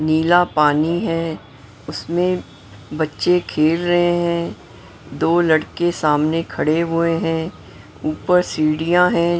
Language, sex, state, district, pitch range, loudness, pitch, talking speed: Hindi, female, Maharashtra, Mumbai Suburban, 150-170 Hz, -18 LUFS, 160 Hz, 110 wpm